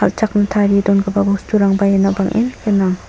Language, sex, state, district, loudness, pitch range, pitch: Garo, female, Meghalaya, South Garo Hills, -15 LUFS, 195-205 Hz, 200 Hz